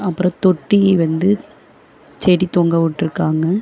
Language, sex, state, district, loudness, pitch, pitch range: Tamil, female, Tamil Nadu, Chennai, -16 LUFS, 180 Hz, 165-190 Hz